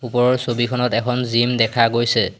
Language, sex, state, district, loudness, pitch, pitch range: Assamese, male, Assam, Hailakandi, -18 LUFS, 120 Hz, 115-125 Hz